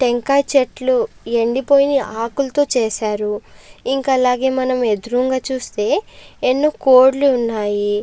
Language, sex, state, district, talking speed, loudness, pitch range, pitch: Telugu, female, Andhra Pradesh, Chittoor, 95 wpm, -17 LUFS, 230-275 Hz, 255 Hz